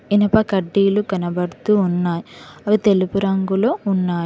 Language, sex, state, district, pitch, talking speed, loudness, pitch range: Telugu, female, Telangana, Mahabubabad, 195 Hz, 115 wpm, -18 LUFS, 180-205 Hz